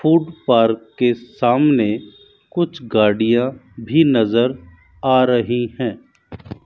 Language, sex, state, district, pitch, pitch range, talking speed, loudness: Hindi, male, Rajasthan, Bikaner, 120 Hz, 110-130 Hz, 100 wpm, -17 LUFS